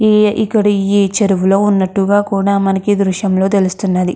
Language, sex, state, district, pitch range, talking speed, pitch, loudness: Telugu, female, Andhra Pradesh, Krishna, 195-205 Hz, 145 wpm, 200 Hz, -13 LUFS